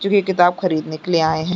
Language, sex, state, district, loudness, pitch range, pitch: Hindi, female, Chhattisgarh, Sarguja, -18 LUFS, 160-185 Hz, 175 Hz